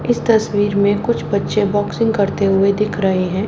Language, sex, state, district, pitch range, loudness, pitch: Hindi, male, Haryana, Jhajjar, 200-215 Hz, -16 LUFS, 205 Hz